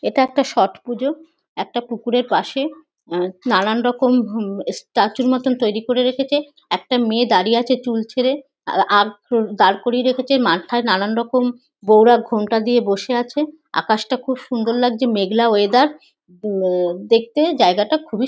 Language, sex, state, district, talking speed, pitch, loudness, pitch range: Bengali, female, West Bengal, North 24 Parganas, 135 wpm, 240 Hz, -18 LUFS, 215-260 Hz